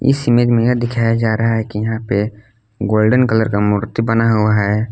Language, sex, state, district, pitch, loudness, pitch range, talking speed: Hindi, male, Jharkhand, Palamu, 115 Hz, -16 LUFS, 110-115 Hz, 195 wpm